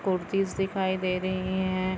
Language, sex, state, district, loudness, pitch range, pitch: Hindi, female, Chhattisgarh, Bilaspur, -28 LUFS, 185-190 Hz, 185 Hz